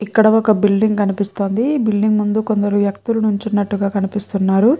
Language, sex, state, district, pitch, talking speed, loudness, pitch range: Telugu, female, Andhra Pradesh, Chittoor, 210 Hz, 140 wpm, -16 LUFS, 200-220 Hz